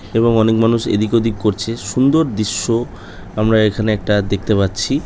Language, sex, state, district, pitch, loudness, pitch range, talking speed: Bengali, male, West Bengal, North 24 Parganas, 110 Hz, -16 LUFS, 105-115 Hz, 165 wpm